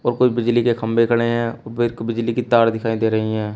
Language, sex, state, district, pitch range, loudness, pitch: Hindi, male, Uttar Pradesh, Shamli, 115-120 Hz, -19 LUFS, 115 Hz